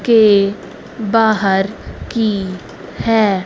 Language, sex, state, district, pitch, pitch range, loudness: Hindi, female, Haryana, Rohtak, 210 Hz, 195-220 Hz, -15 LUFS